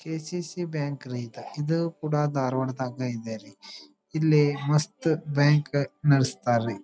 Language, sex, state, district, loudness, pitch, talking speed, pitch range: Kannada, male, Karnataka, Dharwad, -26 LUFS, 145 Hz, 165 wpm, 125-155 Hz